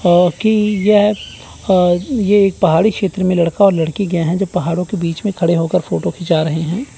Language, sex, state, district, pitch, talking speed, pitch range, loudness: Hindi, male, Chandigarh, Chandigarh, 185 Hz, 215 wpm, 170-205 Hz, -15 LUFS